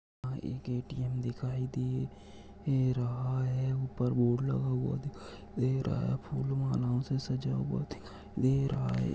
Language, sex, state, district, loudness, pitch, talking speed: Hindi, male, Chhattisgarh, Rajnandgaon, -33 LUFS, 125 Hz, 155 wpm